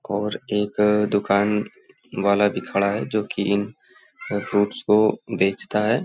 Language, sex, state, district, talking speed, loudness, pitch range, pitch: Hindi, male, Uttar Pradesh, Hamirpur, 140 wpm, -22 LUFS, 100-105 Hz, 105 Hz